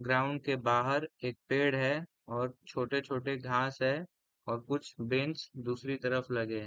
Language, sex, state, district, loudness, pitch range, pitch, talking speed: Hindi, male, Bihar, Gopalganj, -34 LUFS, 125-140 Hz, 130 Hz, 160 wpm